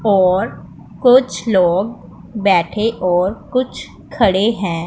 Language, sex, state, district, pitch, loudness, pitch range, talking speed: Hindi, female, Punjab, Pathankot, 190 Hz, -16 LUFS, 175-225 Hz, 100 wpm